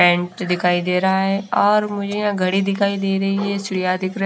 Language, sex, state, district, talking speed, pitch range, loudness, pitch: Hindi, female, Himachal Pradesh, Shimla, 240 wpm, 185-200 Hz, -19 LUFS, 195 Hz